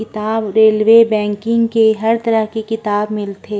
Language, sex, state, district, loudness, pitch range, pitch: Chhattisgarhi, female, Chhattisgarh, Korba, -14 LUFS, 210-225 Hz, 220 Hz